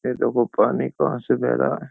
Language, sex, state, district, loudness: Hindi, male, Uttar Pradesh, Jyotiba Phule Nagar, -21 LUFS